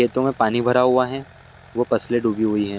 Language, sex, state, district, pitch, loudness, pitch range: Hindi, male, Bihar, Lakhisarai, 120 Hz, -20 LUFS, 115-130 Hz